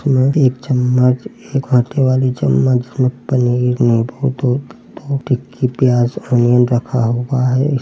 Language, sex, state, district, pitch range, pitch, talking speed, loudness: Hindi, male, Uttar Pradesh, Hamirpur, 125-130 Hz, 125 Hz, 155 wpm, -15 LUFS